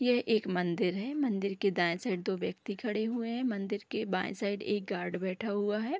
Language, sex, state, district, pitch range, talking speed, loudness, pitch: Hindi, female, Bihar, Supaul, 195-230 Hz, 220 wpm, -33 LUFS, 205 Hz